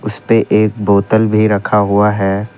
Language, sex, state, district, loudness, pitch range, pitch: Hindi, male, Assam, Kamrup Metropolitan, -13 LUFS, 100-105 Hz, 105 Hz